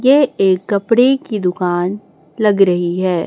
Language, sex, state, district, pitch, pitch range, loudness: Hindi, female, Chhattisgarh, Raipur, 195 Hz, 180-230 Hz, -15 LUFS